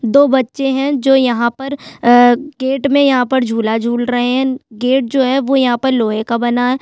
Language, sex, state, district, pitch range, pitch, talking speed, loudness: Hindi, female, Chhattisgarh, Sukma, 240-270 Hz, 255 Hz, 210 wpm, -14 LUFS